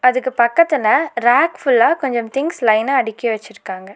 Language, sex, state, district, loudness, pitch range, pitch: Tamil, female, Tamil Nadu, Nilgiris, -16 LUFS, 225-275 Hz, 240 Hz